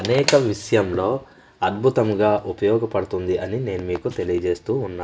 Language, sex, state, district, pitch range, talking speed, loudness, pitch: Telugu, male, Andhra Pradesh, Manyam, 90-105 Hz, 105 wpm, -21 LUFS, 90 Hz